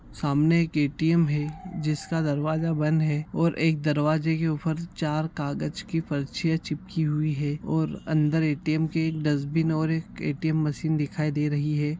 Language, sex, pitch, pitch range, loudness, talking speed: Konkani, male, 155 Hz, 150-160 Hz, -26 LUFS, 170 wpm